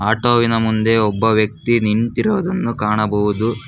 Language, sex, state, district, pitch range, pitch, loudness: Kannada, male, Karnataka, Bangalore, 105-120 Hz, 110 Hz, -17 LUFS